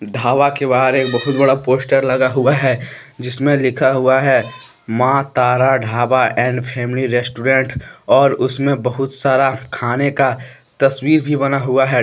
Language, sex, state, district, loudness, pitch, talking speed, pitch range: Hindi, male, Jharkhand, Deoghar, -15 LUFS, 130 Hz, 155 wpm, 125-135 Hz